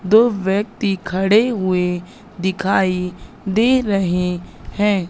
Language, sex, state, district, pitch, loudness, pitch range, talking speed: Hindi, female, Madhya Pradesh, Katni, 195 Hz, -18 LUFS, 185-215 Hz, 95 wpm